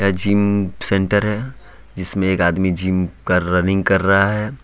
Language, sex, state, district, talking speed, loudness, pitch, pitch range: Hindi, male, Jharkhand, Ranchi, 155 wpm, -18 LUFS, 95 Hz, 90-100 Hz